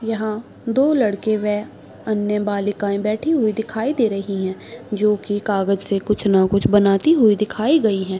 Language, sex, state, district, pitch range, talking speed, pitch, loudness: Hindi, female, Bihar, Saharsa, 200-220 Hz, 175 wpm, 210 Hz, -19 LUFS